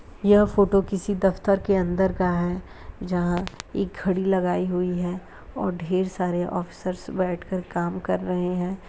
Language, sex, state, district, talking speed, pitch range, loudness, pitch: Hindi, female, Uttar Pradesh, Jyotiba Phule Nagar, 155 wpm, 180-190 Hz, -24 LUFS, 185 Hz